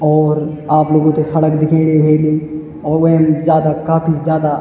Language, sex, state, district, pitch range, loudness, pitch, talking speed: Garhwali, male, Uttarakhand, Tehri Garhwal, 155-160 Hz, -13 LUFS, 155 Hz, 155 wpm